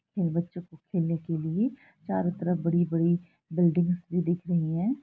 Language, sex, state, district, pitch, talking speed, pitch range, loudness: Hindi, female, Bihar, Araria, 175 Hz, 165 wpm, 170-180 Hz, -28 LUFS